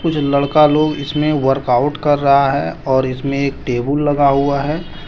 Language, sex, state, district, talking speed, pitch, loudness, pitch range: Hindi, male, Jharkhand, Deoghar, 165 wpm, 140 Hz, -15 LUFS, 140-150 Hz